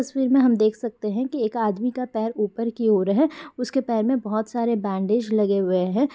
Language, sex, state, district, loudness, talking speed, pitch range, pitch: Hindi, female, Bihar, Darbhanga, -23 LUFS, 235 wpm, 215-255 Hz, 230 Hz